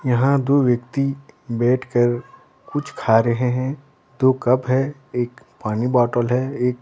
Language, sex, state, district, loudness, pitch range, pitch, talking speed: Hindi, male, Bihar, Patna, -20 LUFS, 120-135 Hz, 125 Hz, 150 wpm